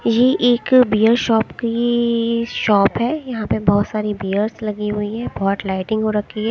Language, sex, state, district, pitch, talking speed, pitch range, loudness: Hindi, female, Haryana, Charkhi Dadri, 220 Hz, 205 wpm, 210-235 Hz, -18 LUFS